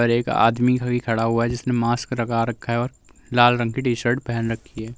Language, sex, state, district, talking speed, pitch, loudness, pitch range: Hindi, male, Uttar Pradesh, Muzaffarnagar, 255 wpm, 120 Hz, -21 LUFS, 115-120 Hz